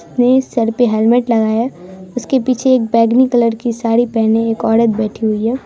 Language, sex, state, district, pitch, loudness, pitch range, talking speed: Hindi, female, Bihar, Araria, 230 Hz, -14 LUFS, 225-245 Hz, 200 wpm